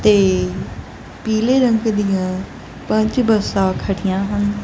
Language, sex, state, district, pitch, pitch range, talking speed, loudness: Punjabi, female, Punjab, Kapurthala, 205 Hz, 195-220 Hz, 105 wpm, -18 LUFS